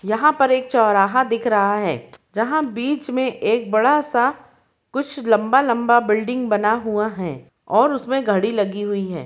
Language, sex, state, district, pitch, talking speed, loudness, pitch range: Hindi, female, Bihar, East Champaran, 230 Hz, 160 wpm, -19 LUFS, 210-260 Hz